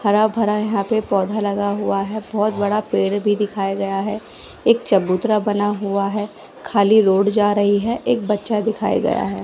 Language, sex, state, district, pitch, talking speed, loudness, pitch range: Hindi, female, Bihar, West Champaran, 205 Hz, 190 wpm, -19 LUFS, 200-215 Hz